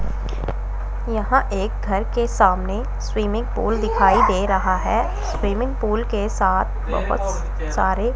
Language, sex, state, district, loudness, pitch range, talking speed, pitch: Hindi, female, Punjab, Pathankot, -21 LUFS, 195-235 Hz, 125 wpm, 215 Hz